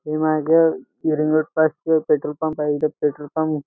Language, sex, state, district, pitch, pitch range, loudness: Marathi, male, Maharashtra, Nagpur, 155 Hz, 150-160 Hz, -20 LUFS